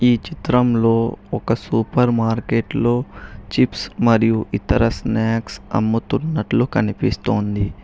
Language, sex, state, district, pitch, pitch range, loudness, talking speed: Telugu, male, Telangana, Hyderabad, 115 Hz, 110-120 Hz, -19 LUFS, 85 wpm